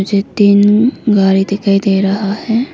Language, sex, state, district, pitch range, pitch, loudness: Hindi, female, Arunachal Pradesh, Lower Dibang Valley, 195-210 Hz, 200 Hz, -12 LUFS